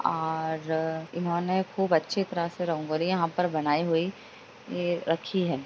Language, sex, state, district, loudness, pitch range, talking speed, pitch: Hindi, female, Uttar Pradesh, Hamirpur, -28 LUFS, 160-180 Hz, 150 wpm, 170 Hz